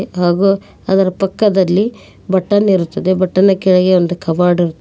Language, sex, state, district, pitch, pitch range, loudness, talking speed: Kannada, female, Karnataka, Koppal, 190 Hz, 180-195 Hz, -14 LUFS, 135 wpm